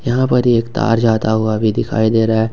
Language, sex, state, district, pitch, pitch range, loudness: Hindi, male, Jharkhand, Ranchi, 110 Hz, 110-120 Hz, -15 LUFS